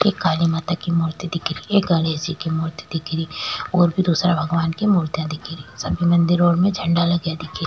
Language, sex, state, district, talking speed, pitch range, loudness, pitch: Rajasthani, female, Rajasthan, Churu, 225 wpm, 160-175 Hz, -20 LUFS, 165 Hz